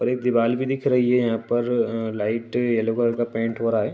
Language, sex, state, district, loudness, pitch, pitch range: Hindi, male, Uttar Pradesh, Ghazipur, -22 LUFS, 115 Hz, 115-125 Hz